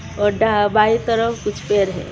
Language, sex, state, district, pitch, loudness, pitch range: Hindi, female, Tripura, West Tripura, 210 Hz, -18 LUFS, 205-225 Hz